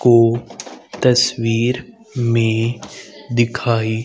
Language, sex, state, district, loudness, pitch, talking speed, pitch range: Hindi, male, Haryana, Rohtak, -17 LUFS, 120 Hz, 60 wpm, 115-125 Hz